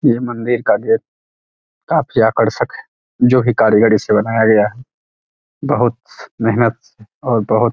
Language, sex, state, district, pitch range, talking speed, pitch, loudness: Hindi, male, Bihar, Araria, 110-125 Hz, 145 wpm, 120 Hz, -15 LUFS